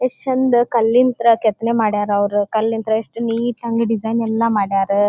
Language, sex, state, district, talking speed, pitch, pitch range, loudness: Kannada, female, Karnataka, Dharwad, 140 wpm, 225 Hz, 215-235 Hz, -17 LUFS